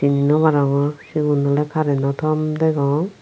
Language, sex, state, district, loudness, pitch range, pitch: Chakma, female, Tripura, Unakoti, -19 LUFS, 140-155 Hz, 150 Hz